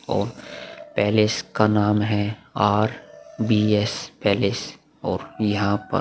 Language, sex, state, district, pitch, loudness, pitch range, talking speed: Hindi, male, Bihar, Vaishali, 105 Hz, -22 LUFS, 105-110 Hz, 130 wpm